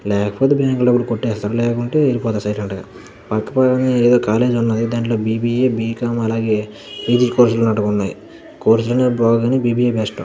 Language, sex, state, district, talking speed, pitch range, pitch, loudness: Telugu, male, Karnataka, Dharwad, 200 wpm, 110-125 Hz, 115 Hz, -17 LUFS